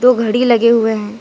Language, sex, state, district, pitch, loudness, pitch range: Hindi, female, Jharkhand, Deoghar, 230 Hz, -13 LUFS, 220-240 Hz